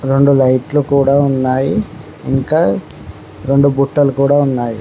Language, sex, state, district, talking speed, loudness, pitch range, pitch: Telugu, male, Telangana, Mahabubabad, 110 wpm, -13 LUFS, 130-140 Hz, 135 Hz